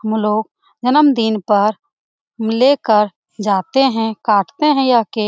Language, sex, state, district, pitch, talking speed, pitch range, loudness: Hindi, female, Bihar, Lakhisarai, 225 Hz, 135 wpm, 210-270 Hz, -15 LUFS